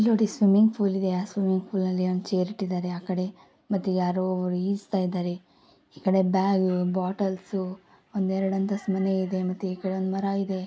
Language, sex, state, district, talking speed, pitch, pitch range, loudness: Kannada, female, Karnataka, Gulbarga, 175 wpm, 190 Hz, 185-195 Hz, -26 LUFS